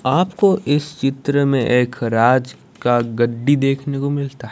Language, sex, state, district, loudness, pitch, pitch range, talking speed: Hindi, female, Odisha, Malkangiri, -18 LUFS, 135 Hz, 120-140 Hz, 160 wpm